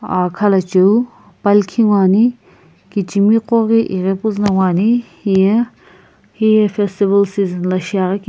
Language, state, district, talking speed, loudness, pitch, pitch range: Sumi, Nagaland, Kohima, 130 wpm, -15 LUFS, 200 Hz, 190-220 Hz